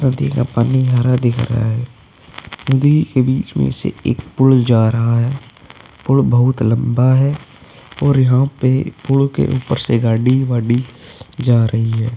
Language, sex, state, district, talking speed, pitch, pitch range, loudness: Hindi, male, Uttar Pradesh, Hamirpur, 165 wpm, 125 Hz, 120-135 Hz, -15 LUFS